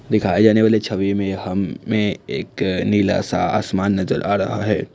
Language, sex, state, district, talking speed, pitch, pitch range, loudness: Hindi, male, Assam, Kamrup Metropolitan, 170 wpm, 100 Hz, 95-110 Hz, -19 LUFS